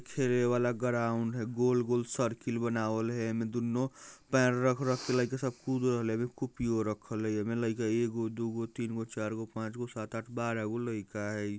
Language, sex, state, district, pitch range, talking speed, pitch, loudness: Bajjika, male, Bihar, Vaishali, 115-125 Hz, 185 wpm, 115 Hz, -33 LUFS